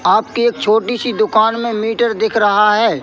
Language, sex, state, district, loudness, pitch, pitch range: Hindi, male, Madhya Pradesh, Katni, -14 LUFS, 225 Hz, 215-235 Hz